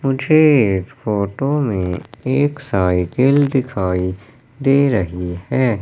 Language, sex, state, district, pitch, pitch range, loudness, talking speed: Hindi, male, Madhya Pradesh, Katni, 125 Hz, 95-140 Hz, -17 LUFS, 105 wpm